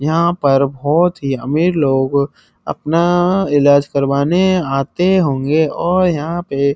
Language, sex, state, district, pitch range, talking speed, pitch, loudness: Hindi, male, Uttar Pradesh, Muzaffarnagar, 140-175 Hz, 115 wpm, 150 Hz, -15 LUFS